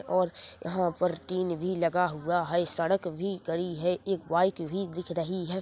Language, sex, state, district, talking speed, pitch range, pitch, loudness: Hindi, male, Chhattisgarh, Korba, 190 wpm, 170-185 Hz, 180 Hz, -30 LUFS